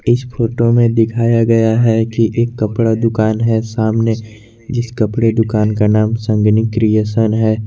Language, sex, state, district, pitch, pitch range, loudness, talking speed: Hindi, male, Jharkhand, Garhwa, 115 Hz, 110-115 Hz, -14 LUFS, 155 wpm